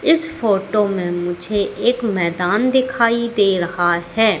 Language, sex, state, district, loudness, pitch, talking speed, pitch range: Hindi, female, Madhya Pradesh, Katni, -18 LUFS, 205 Hz, 135 wpm, 180-235 Hz